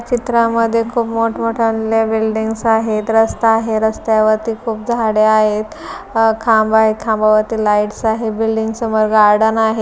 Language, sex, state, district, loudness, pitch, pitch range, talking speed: Marathi, female, Maharashtra, Pune, -15 LUFS, 220 Hz, 220-225 Hz, 140 wpm